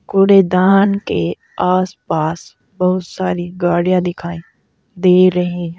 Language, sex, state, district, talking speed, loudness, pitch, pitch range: Hindi, female, Uttar Pradesh, Saharanpur, 95 wpm, -15 LUFS, 180 Hz, 175-185 Hz